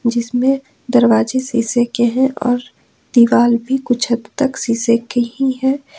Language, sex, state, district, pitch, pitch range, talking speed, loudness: Hindi, female, Jharkhand, Ranchi, 245 Hz, 235-265 Hz, 150 wpm, -16 LUFS